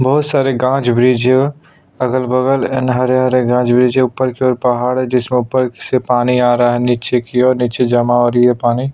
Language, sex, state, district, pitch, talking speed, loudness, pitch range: Hindi, male, Chhattisgarh, Sukma, 125 Hz, 230 wpm, -14 LUFS, 125-130 Hz